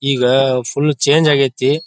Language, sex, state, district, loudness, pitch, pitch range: Kannada, male, Karnataka, Bijapur, -14 LUFS, 135 Hz, 130-145 Hz